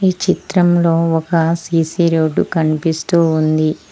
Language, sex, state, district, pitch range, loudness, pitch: Telugu, female, Telangana, Mahabubabad, 160-175 Hz, -15 LUFS, 165 Hz